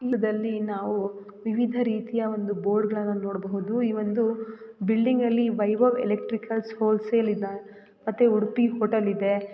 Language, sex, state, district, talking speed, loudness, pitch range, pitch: Kannada, female, Karnataka, Raichur, 125 wpm, -26 LUFS, 205-230 Hz, 220 Hz